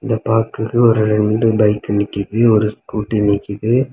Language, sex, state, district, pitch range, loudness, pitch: Tamil, male, Tamil Nadu, Kanyakumari, 105-115 Hz, -16 LUFS, 110 Hz